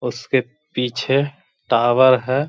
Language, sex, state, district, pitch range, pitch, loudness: Hindi, male, Bihar, Gaya, 125-140 Hz, 130 Hz, -18 LUFS